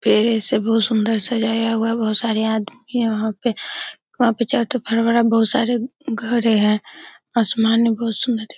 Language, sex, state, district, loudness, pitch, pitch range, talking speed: Hindi, female, Uttar Pradesh, Hamirpur, -18 LUFS, 230 Hz, 220-235 Hz, 170 wpm